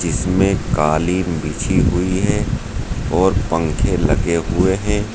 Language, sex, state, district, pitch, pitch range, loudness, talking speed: Hindi, male, Uttar Pradesh, Saharanpur, 90 Hz, 85-100 Hz, -18 LUFS, 115 wpm